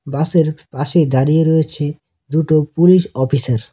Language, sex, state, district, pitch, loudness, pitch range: Bengali, male, West Bengal, Cooch Behar, 155 Hz, -15 LUFS, 140-160 Hz